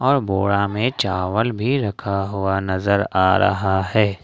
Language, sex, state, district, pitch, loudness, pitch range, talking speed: Hindi, male, Jharkhand, Ranchi, 100 Hz, -20 LUFS, 95-110 Hz, 140 wpm